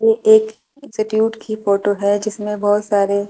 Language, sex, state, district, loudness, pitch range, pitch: Hindi, female, Delhi, New Delhi, -17 LUFS, 205-280 Hz, 215 Hz